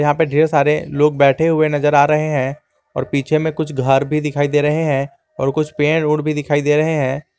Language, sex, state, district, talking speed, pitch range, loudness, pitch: Hindi, male, Jharkhand, Garhwa, 245 wpm, 145-155 Hz, -16 LUFS, 150 Hz